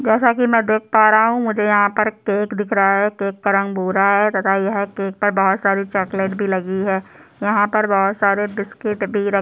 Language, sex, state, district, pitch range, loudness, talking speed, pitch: Hindi, male, Chhattisgarh, Sukma, 195-210 Hz, -17 LUFS, 235 wpm, 200 Hz